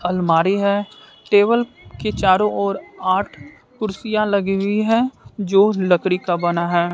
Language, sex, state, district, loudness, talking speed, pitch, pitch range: Hindi, female, Bihar, West Champaran, -18 LUFS, 140 wpm, 200 Hz, 185-210 Hz